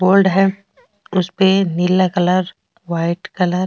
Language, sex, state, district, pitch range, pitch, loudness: Rajasthani, female, Rajasthan, Nagaur, 180-195 Hz, 185 Hz, -16 LUFS